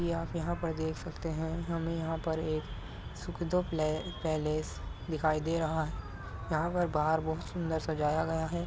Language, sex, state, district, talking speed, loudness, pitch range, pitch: Hindi, male, Uttar Pradesh, Muzaffarnagar, 160 wpm, -34 LUFS, 155-165 Hz, 160 Hz